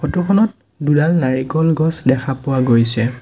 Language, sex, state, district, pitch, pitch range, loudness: Assamese, male, Assam, Sonitpur, 145 Hz, 130-160 Hz, -16 LUFS